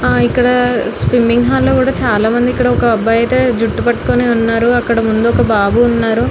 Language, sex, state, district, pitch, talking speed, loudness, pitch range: Telugu, female, Telangana, Nalgonda, 235 Hz, 190 wpm, -12 LUFS, 225-245 Hz